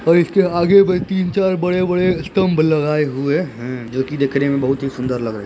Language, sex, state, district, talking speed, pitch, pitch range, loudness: Hindi, male, Bihar, Begusarai, 230 wpm, 155 Hz, 135-180 Hz, -17 LUFS